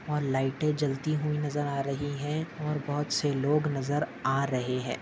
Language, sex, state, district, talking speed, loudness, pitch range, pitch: Hindi, male, Maharashtra, Dhule, 190 wpm, -30 LUFS, 135-150 Hz, 145 Hz